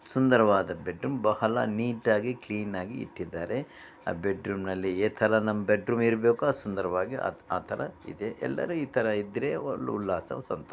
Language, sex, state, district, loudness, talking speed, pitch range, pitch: Kannada, male, Karnataka, Bellary, -29 LUFS, 145 wpm, 105-120 Hz, 110 Hz